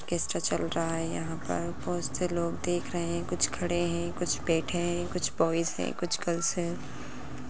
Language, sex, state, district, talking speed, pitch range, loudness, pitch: Hindi, female, Bihar, Lakhisarai, 190 wpm, 165-175 Hz, -30 LUFS, 170 Hz